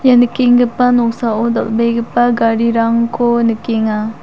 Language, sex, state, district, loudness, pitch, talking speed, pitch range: Garo, female, Meghalaya, South Garo Hills, -13 LUFS, 235 Hz, 85 wpm, 230-240 Hz